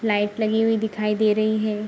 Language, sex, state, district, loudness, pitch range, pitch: Hindi, female, Bihar, Araria, -22 LUFS, 210-220 Hz, 215 Hz